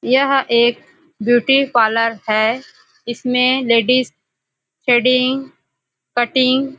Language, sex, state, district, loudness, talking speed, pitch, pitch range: Hindi, female, Chhattisgarh, Bastar, -16 LUFS, 90 wpm, 250 Hz, 235-265 Hz